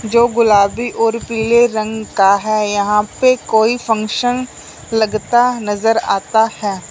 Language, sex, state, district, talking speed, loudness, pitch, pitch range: Hindi, male, Punjab, Fazilka, 140 wpm, -15 LUFS, 220 Hz, 210-235 Hz